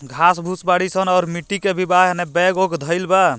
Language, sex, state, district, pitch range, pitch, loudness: Bhojpuri, male, Bihar, Muzaffarpur, 175-185 Hz, 180 Hz, -17 LUFS